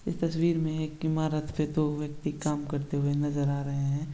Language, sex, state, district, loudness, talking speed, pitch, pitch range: Hindi, male, Bihar, Begusarai, -30 LUFS, 215 wpm, 150 Hz, 145-155 Hz